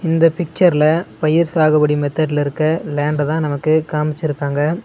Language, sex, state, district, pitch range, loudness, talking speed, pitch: Tamil, male, Tamil Nadu, Nilgiris, 150-165 Hz, -16 LUFS, 110 wpm, 155 Hz